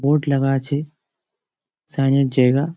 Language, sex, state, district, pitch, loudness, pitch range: Bengali, male, West Bengal, Malda, 140 Hz, -19 LUFS, 135-150 Hz